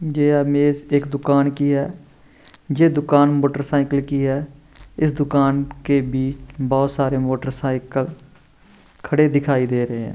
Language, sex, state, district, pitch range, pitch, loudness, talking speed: Hindi, male, Maharashtra, Chandrapur, 135-145 Hz, 140 Hz, -19 LUFS, 135 wpm